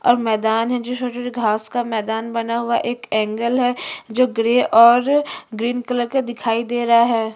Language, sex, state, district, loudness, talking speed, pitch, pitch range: Hindi, female, Chhattisgarh, Bastar, -19 LUFS, 195 wpm, 235 Hz, 225-245 Hz